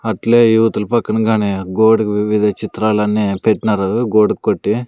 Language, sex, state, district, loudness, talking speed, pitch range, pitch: Telugu, male, Andhra Pradesh, Sri Satya Sai, -15 LUFS, 125 wpm, 105-110 Hz, 110 Hz